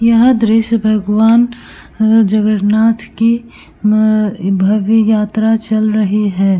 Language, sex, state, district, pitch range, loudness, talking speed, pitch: Hindi, female, Uttar Pradesh, Etah, 210-225 Hz, -12 LUFS, 110 wpm, 215 Hz